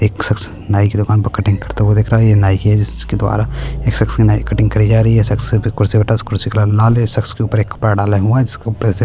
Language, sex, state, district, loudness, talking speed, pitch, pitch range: Hindi, male, Chhattisgarh, Kabirdham, -14 LUFS, 330 wpm, 105 Hz, 105-110 Hz